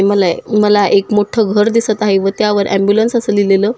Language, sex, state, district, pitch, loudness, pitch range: Marathi, female, Maharashtra, Sindhudurg, 205 Hz, -13 LUFS, 200-215 Hz